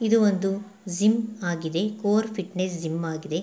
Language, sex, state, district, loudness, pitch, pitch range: Kannada, female, Karnataka, Mysore, -26 LUFS, 195 Hz, 175-210 Hz